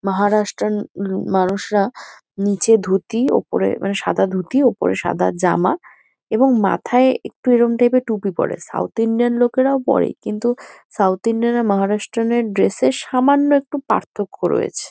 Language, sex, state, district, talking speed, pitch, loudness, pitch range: Bengali, female, West Bengal, Kolkata, 155 wpm, 225 Hz, -18 LUFS, 195-245 Hz